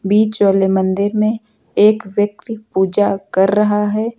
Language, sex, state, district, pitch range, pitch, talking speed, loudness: Hindi, male, Uttar Pradesh, Lucknow, 195-215 Hz, 205 Hz, 145 wpm, -15 LUFS